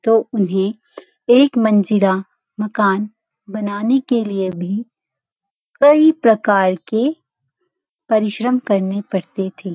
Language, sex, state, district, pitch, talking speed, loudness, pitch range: Hindi, female, Uttarakhand, Uttarkashi, 215 Hz, 100 wpm, -17 LUFS, 195-245 Hz